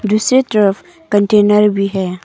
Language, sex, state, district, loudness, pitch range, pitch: Hindi, female, Arunachal Pradesh, Papum Pare, -13 LUFS, 195-215 Hz, 210 Hz